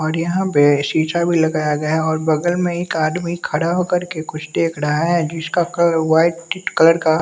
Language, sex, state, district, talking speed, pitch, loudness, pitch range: Hindi, male, Bihar, West Champaran, 205 wpm, 165 Hz, -17 LUFS, 155-170 Hz